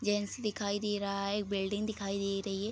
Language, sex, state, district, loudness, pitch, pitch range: Hindi, female, Bihar, Araria, -34 LUFS, 205 Hz, 200-210 Hz